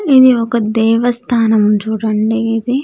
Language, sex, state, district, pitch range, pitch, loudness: Telugu, female, Andhra Pradesh, Sri Satya Sai, 220-245 Hz, 225 Hz, -13 LUFS